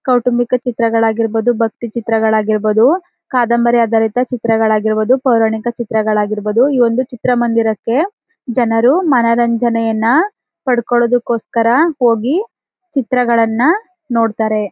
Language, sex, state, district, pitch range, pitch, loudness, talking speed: Kannada, female, Karnataka, Chamarajanagar, 225-250 Hz, 235 Hz, -14 LUFS, 75 wpm